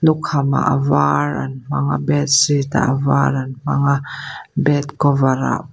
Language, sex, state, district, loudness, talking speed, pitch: Mizo, female, Mizoram, Aizawl, -17 LUFS, 180 wpm, 140 Hz